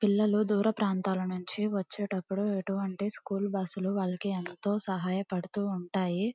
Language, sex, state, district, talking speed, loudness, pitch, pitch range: Telugu, female, Andhra Pradesh, Guntur, 140 wpm, -31 LUFS, 195 Hz, 185-205 Hz